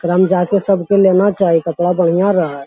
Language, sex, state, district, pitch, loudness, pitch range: Magahi, male, Bihar, Lakhisarai, 185 Hz, -14 LUFS, 175-195 Hz